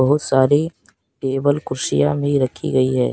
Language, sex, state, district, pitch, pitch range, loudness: Hindi, male, Jharkhand, Deoghar, 135 Hz, 130-145 Hz, -19 LUFS